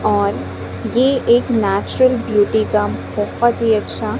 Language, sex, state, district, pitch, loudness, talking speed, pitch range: Hindi, female, Chhattisgarh, Raipur, 220 Hz, -17 LUFS, 130 wpm, 205-240 Hz